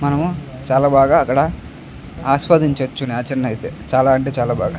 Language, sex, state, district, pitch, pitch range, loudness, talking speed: Telugu, male, Andhra Pradesh, Chittoor, 130 Hz, 120-140 Hz, -17 LUFS, 160 wpm